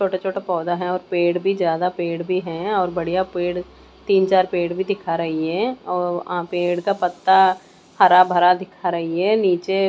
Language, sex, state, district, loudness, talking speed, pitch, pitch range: Hindi, female, Maharashtra, Mumbai Suburban, -20 LUFS, 190 wpm, 180 Hz, 175-190 Hz